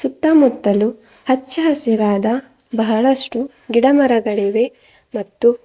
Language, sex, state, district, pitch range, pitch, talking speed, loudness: Kannada, female, Karnataka, Bidar, 220-265 Hz, 240 Hz, 55 wpm, -16 LUFS